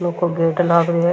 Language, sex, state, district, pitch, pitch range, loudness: Rajasthani, female, Rajasthan, Churu, 170 Hz, 170-175 Hz, -17 LUFS